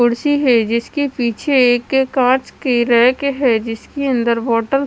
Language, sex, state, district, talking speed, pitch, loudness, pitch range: Hindi, female, Chandigarh, Chandigarh, 170 wpm, 250 Hz, -16 LUFS, 235-270 Hz